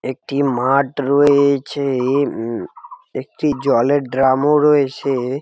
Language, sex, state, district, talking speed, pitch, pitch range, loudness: Bengali, male, West Bengal, Jalpaiguri, 110 wpm, 140 Hz, 130-145 Hz, -17 LUFS